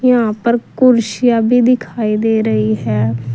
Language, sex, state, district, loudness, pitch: Hindi, female, Uttar Pradesh, Saharanpur, -14 LUFS, 225 Hz